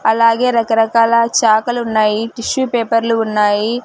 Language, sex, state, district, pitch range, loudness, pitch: Telugu, female, Andhra Pradesh, Sri Satya Sai, 220-235 Hz, -14 LUFS, 230 Hz